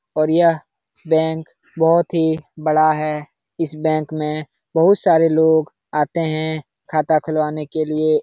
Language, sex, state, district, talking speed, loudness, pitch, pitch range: Hindi, male, Uttar Pradesh, Etah, 140 wpm, -18 LUFS, 155 Hz, 155-160 Hz